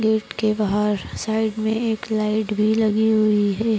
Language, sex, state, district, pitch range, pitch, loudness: Hindi, female, Maharashtra, Nagpur, 210-220 Hz, 215 Hz, -21 LUFS